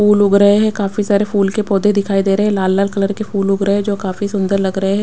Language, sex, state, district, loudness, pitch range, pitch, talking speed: Hindi, female, Bihar, West Champaran, -15 LUFS, 195-205 Hz, 200 Hz, 320 wpm